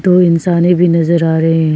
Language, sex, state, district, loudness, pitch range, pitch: Hindi, female, Arunachal Pradesh, Papum Pare, -11 LUFS, 165-175 Hz, 170 Hz